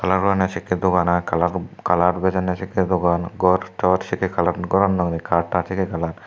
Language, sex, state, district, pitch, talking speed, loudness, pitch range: Chakma, male, Tripura, Dhalai, 90 Hz, 180 wpm, -20 LUFS, 85-95 Hz